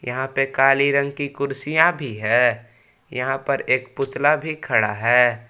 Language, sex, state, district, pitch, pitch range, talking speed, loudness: Hindi, male, Jharkhand, Palamu, 135 Hz, 125-140 Hz, 165 wpm, -20 LUFS